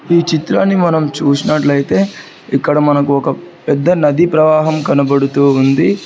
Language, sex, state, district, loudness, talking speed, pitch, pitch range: Telugu, male, Telangana, Hyderabad, -13 LUFS, 120 wpm, 150 Hz, 140-160 Hz